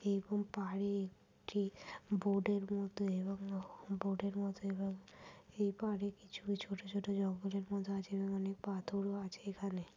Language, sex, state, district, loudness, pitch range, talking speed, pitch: Bengali, female, West Bengal, Malda, -40 LUFS, 195-200 Hz, 130 wpm, 195 Hz